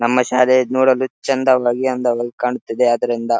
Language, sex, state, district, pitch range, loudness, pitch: Kannada, male, Karnataka, Bellary, 120-130 Hz, -17 LUFS, 125 Hz